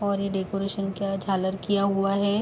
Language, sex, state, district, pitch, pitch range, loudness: Hindi, female, Uttar Pradesh, Etah, 195 Hz, 195-200 Hz, -26 LUFS